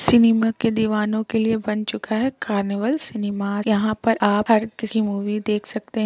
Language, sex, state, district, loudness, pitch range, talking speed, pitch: Hindi, female, Uttar Pradesh, Muzaffarnagar, -21 LUFS, 210-225 Hz, 200 wpm, 220 Hz